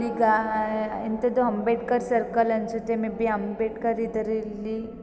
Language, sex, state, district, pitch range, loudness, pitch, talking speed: Kannada, female, Karnataka, Gulbarga, 220-230 Hz, -26 LUFS, 225 Hz, 105 wpm